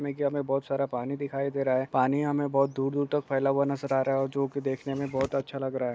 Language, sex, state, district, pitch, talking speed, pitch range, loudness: Hindi, male, Chhattisgarh, Bastar, 135 Hz, 315 wpm, 135-140 Hz, -28 LUFS